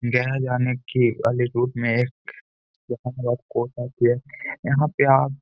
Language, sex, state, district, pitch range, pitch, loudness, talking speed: Hindi, male, Bihar, Gaya, 120-130 Hz, 125 Hz, -23 LUFS, 80 wpm